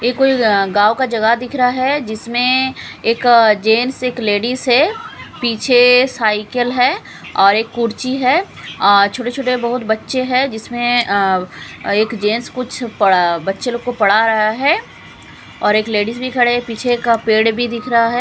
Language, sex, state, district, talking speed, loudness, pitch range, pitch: Hindi, female, Punjab, Kapurthala, 170 wpm, -15 LUFS, 220-250 Hz, 240 Hz